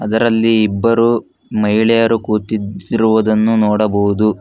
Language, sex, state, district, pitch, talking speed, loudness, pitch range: Kannada, male, Karnataka, Bangalore, 110 Hz, 70 wpm, -14 LUFS, 105-115 Hz